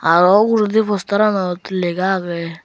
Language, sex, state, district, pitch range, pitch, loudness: Chakma, male, Tripura, Unakoti, 175-210 Hz, 190 Hz, -16 LUFS